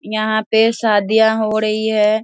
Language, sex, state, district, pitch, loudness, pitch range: Hindi, female, Bihar, Darbhanga, 220 Hz, -15 LUFS, 215-220 Hz